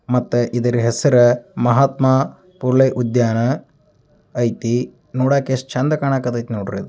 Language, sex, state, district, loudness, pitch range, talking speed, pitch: Kannada, male, Karnataka, Belgaum, -18 LUFS, 120-130 Hz, 115 wpm, 125 Hz